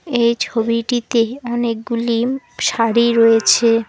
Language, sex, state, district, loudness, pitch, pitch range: Bengali, female, West Bengal, Alipurduar, -16 LUFS, 235 Hz, 230-240 Hz